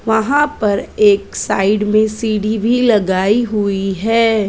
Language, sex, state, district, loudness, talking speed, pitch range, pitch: Hindi, female, Maharashtra, Mumbai Suburban, -15 LUFS, 135 wpm, 205-225 Hz, 215 Hz